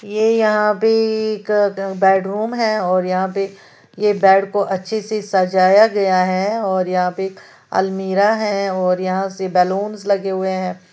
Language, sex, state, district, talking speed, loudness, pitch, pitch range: Hindi, female, Uttar Pradesh, Lalitpur, 170 wpm, -17 LUFS, 195 Hz, 190-210 Hz